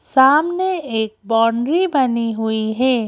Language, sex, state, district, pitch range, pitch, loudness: Hindi, female, Madhya Pradesh, Bhopal, 225-290 Hz, 240 Hz, -17 LUFS